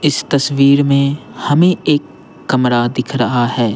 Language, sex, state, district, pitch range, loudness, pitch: Hindi, male, Bihar, Patna, 120-140 Hz, -14 LUFS, 140 Hz